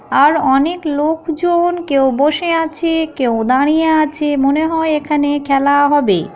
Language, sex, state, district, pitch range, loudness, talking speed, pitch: Bengali, female, West Bengal, Malda, 280-320 Hz, -14 LUFS, 150 wpm, 300 Hz